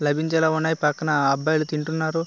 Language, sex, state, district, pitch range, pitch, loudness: Telugu, male, Andhra Pradesh, Visakhapatnam, 150-160 Hz, 155 Hz, -22 LUFS